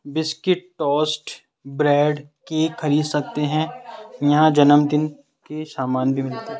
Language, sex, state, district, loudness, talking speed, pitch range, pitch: Hindi, male, Rajasthan, Jaipur, -20 LUFS, 125 wpm, 145-160 Hz, 150 Hz